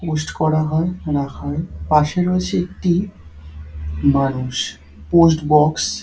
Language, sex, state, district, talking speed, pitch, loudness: Bengali, male, West Bengal, Dakshin Dinajpur, 120 wpm, 150 Hz, -18 LUFS